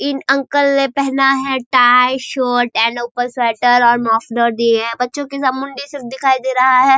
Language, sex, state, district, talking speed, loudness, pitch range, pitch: Hindi, female, Bihar, Saharsa, 205 wpm, -14 LUFS, 240-275 Hz, 255 Hz